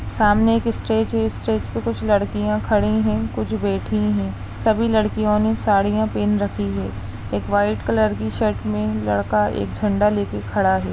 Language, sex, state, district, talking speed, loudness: Hindi, female, Bihar, Darbhanga, 175 wpm, -20 LUFS